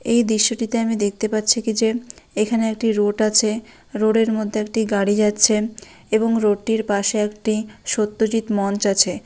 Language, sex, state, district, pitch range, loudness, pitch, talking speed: Bengali, female, West Bengal, Dakshin Dinajpur, 210-225 Hz, -19 LUFS, 215 Hz, 175 wpm